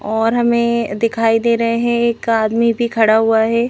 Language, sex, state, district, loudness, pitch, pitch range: Hindi, female, Madhya Pradesh, Bhopal, -15 LUFS, 230 Hz, 225-235 Hz